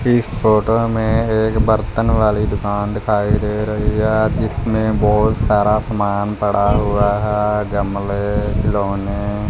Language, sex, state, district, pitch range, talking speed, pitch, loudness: Hindi, male, Punjab, Fazilka, 105-110 Hz, 125 wpm, 105 Hz, -17 LUFS